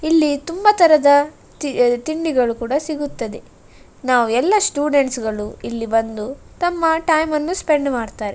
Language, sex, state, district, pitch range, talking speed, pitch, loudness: Kannada, female, Karnataka, Dakshina Kannada, 240-320 Hz, 130 wpm, 285 Hz, -18 LUFS